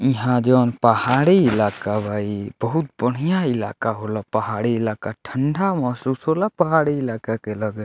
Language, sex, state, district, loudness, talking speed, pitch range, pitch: Bhojpuri, male, Bihar, Muzaffarpur, -21 LUFS, 145 wpm, 110-135 Hz, 120 Hz